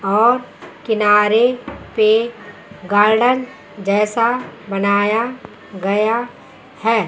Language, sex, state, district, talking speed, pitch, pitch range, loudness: Hindi, female, Chandigarh, Chandigarh, 70 wpm, 220 Hz, 205-240 Hz, -17 LUFS